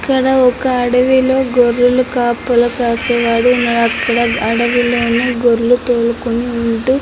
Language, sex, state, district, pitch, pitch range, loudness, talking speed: Telugu, female, Andhra Pradesh, Anantapur, 245 Hz, 235-250 Hz, -13 LUFS, 110 wpm